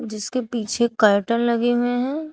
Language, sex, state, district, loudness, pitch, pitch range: Hindi, female, Uttar Pradesh, Shamli, -21 LUFS, 235 Hz, 230-245 Hz